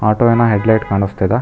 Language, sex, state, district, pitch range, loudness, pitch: Kannada, male, Karnataka, Bangalore, 100-115 Hz, -14 LUFS, 105 Hz